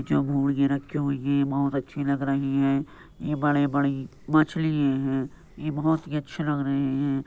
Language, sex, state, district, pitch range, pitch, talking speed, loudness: Hindi, male, Uttar Pradesh, Jyotiba Phule Nagar, 140-150 Hz, 140 Hz, 180 wpm, -26 LUFS